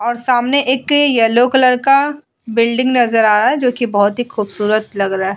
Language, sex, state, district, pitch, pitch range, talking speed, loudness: Hindi, female, Uttar Pradesh, Budaun, 240 Hz, 215-260 Hz, 200 wpm, -14 LUFS